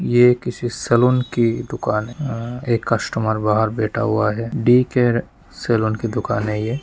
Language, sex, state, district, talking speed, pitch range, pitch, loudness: Hindi, male, West Bengal, Jalpaiguri, 165 wpm, 110-120 Hz, 115 Hz, -19 LUFS